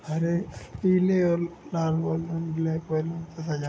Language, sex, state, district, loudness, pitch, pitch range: Hindi, male, Jharkhand, Jamtara, -27 LUFS, 165 Hz, 160-170 Hz